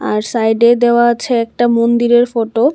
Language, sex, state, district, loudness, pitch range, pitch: Bengali, female, Tripura, West Tripura, -13 LUFS, 230-240 Hz, 235 Hz